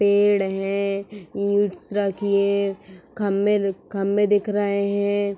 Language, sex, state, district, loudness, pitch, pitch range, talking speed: Hindi, female, Uttar Pradesh, Etah, -22 LUFS, 200 Hz, 195-205 Hz, 110 wpm